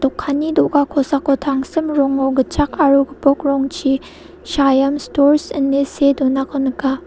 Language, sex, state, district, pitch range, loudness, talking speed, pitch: Garo, female, Meghalaya, South Garo Hills, 270-290 Hz, -16 LUFS, 125 wpm, 280 Hz